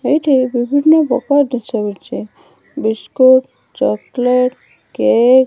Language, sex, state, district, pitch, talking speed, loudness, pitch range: Odia, female, Odisha, Malkangiri, 255 Hz, 100 wpm, -14 LUFS, 245-285 Hz